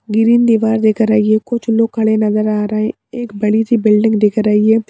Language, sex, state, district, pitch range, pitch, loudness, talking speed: Hindi, female, Madhya Pradesh, Bhopal, 215-225 Hz, 220 Hz, -13 LUFS, 220 wpm